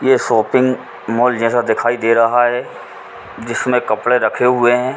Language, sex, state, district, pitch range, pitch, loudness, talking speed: Hindi, male, Uttar Pradesh, Ghazipur, 115-125 Hz, 120 Hz, -15 LUFS, 155 wpm